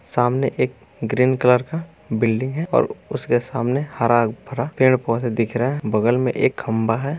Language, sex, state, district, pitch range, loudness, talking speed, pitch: Hindi, male, Bihar, Darbhanga, 115-135 Hz, -20 LUFS, 165 wpm, 125 Hz